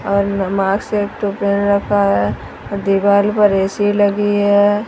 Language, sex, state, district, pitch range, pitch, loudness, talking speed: Hindi, female, Odisha, Sambalpur, 195-205 Hz, 200 Hz, -15 LUFS, 110 wpm